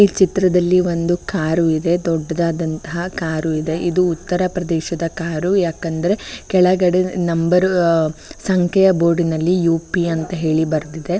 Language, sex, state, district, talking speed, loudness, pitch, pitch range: Kannada, female, Karnataka, Bellary, 120 wpm, -18 LUFS, 170 Hz, 165-180 Hz